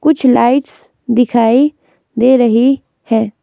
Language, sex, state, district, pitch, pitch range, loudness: Hindi, female, Himachal Pradesh, Shimla, 250 Hz, 235-270 Hz, -12 LUFS